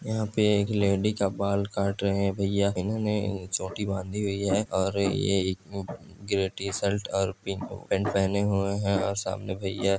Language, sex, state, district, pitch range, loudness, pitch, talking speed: Hindi, male, Andhra Pradesh, Chittoor, 95-100 Hz, -28 LUFS, 100 Hz, 160 wpm